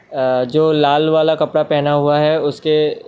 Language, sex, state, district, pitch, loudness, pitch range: Hindi, male, Assam, Kamrup Metropolitan, 150 Hz, -15 LUFS, 145-155 Hz